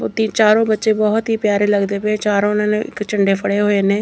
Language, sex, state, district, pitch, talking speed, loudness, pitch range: Punjabi, female, Chandigarh, Chandigarh, 210 Hz, 210 wpm, -16 LUFS, 205-215 Hz